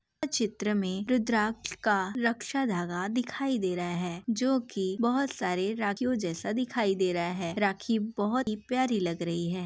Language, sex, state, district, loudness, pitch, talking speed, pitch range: Hindi, female, Uttar Pradesh, Jalaun, -30 LUFS, 210 Hz, 170 wpm, 185-245 Hz